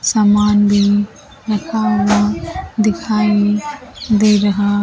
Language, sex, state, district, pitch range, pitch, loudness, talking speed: Hindi, female, Bihar, Kaimur, 205-215 Hz, 210 Hz, -15 LUFS, 100 wpm